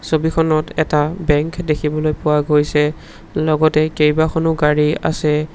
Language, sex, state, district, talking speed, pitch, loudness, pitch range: Assamese, male, Assam, Sonitpur, 110 wpm, 155 Hz, -17 LUFS, 150-160 Hz